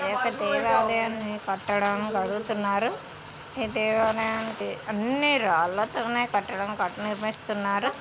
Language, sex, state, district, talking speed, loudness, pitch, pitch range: Telugu, female, Telangana, Nalgonda, 75 wpm, -26 LUFS, 215 Hz, 205-225 Hz